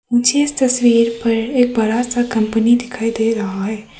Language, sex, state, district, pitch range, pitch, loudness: Hindi, female, Arunachal Pradesh, Papum Pare, 225-245 Hz, 230 Hz, -16 LUFS